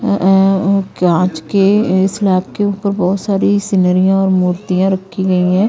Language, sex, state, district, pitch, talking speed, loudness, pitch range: Hindi, female, Punjab, Kapurthala, 190 Hz, 160 wpm, -14 LUFS, 185-200 Hz